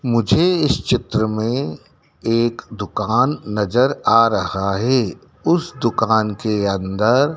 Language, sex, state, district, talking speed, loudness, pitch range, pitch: Hindi, male, Madhya Pradesh, Dhar, 115 wpm, -18 LUFS, 105-125 Hz, 115 Hz